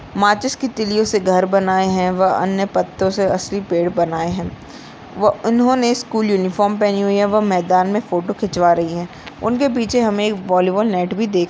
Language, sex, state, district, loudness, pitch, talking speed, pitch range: Hindi, female, Bihar, Bhagalpur, -17 LUFS, 200 Hz, 200 wpm, 185-215 Hz